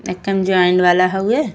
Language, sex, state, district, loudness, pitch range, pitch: Bhojpuri, female, Uttar Pradesh, Ghazipur, -15 LUFS, 180-195 Hz, 190 Hz